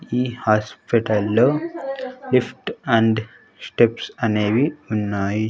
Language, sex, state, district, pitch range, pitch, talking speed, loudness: Telugu, male, Andhra Pradesh, Sri Satya Sai, 110-145 Hz, 115 Hz, 75 wpm, -21 LUFS